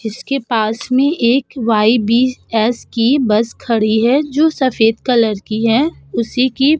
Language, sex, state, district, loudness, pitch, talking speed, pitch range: Hindi, female, Uttar Pradesh, Budaun, -15 LUFS, 235 Hz, 150 wpm, 225-265 Hz